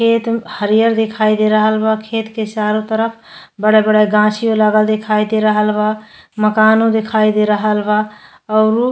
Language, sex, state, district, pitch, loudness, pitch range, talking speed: Bhojpuri, female, Uttar Pradesh, Deoria, 215 Hz, -14 LUFS, 215-220 Hz, 170 wpm